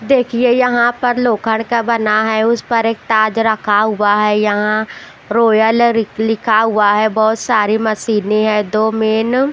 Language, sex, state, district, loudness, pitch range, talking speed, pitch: Hindi, female, Haryana, Jhajjar, -14 LUFS, 215-235 Hz, 165 wpm, 220 Hz